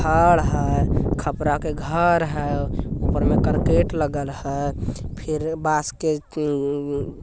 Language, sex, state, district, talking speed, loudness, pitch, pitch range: Hindi, male, Bihar, Jamui, 135 wpm, -22 LUFS, 150 Hz, 140-155 Hz